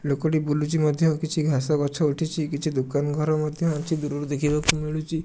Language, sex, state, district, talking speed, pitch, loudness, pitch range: Odia, male, Odisha, Nuapada, 170 wpm, 150 Hz, -24 LUFS, 145-155 Hz